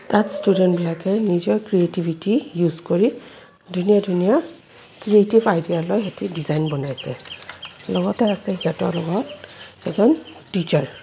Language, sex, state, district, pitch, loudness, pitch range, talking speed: Assamese, female, Assam, Kamrup Metropolitan, 190 Hz, -20 LUFS, 170-210 Hz, 115 wpm